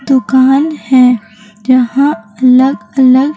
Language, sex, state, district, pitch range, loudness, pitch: Hindi, female, Chhattisgarh, Raipur, 245-270 Hz, -10 LUFS, 260 Hz